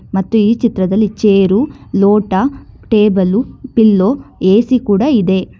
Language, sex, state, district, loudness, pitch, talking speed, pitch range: Kannada, female, Karnataka, Bangalore, -13 LUFS, 210 Hz, 105 wpm, 195-230 Hz